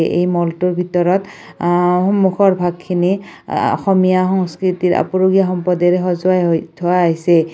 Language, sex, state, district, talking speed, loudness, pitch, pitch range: Assamese, female, Assam, Kamrup Metropolitan, 120 wpm, -15 LUFS, 180 Hz, 175-185 Hz